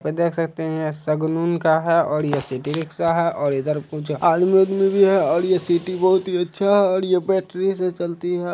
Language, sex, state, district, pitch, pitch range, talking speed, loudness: Hindi, male, Bihar, Saharsa, 170 Hz, 160-185 Hz, 225 wpm, -20 LUFS